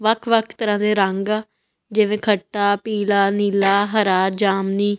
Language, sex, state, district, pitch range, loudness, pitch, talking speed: Punjabi, female, Punjab, Kapurthala, 200-215 Hz, -19 LUFS, 205 Hz, 145 wpm